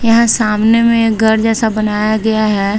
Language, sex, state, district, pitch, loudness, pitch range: Hindi, female, Bihar, Saharsa, 220 Hz, -12 LUFS, 215-225 Hz